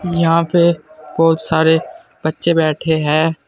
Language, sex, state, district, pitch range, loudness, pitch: Hindi, male, Uttar Pradesh, Saharanpur, 155-165 Hz, -15 LUFS, 160 Hz